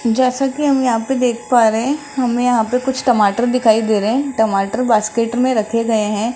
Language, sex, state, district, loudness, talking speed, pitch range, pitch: Hindi, male, Rajasthan, Jaipur, -16 LUFS, 225 wpm, 220-255 Hz, 240 Hz